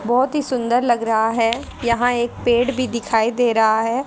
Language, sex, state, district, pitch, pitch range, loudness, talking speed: Hindi, female, Haryana, Charkhi Dadri, 240 Hz, 230-245 Hz, -19 LUFS, 205 wpm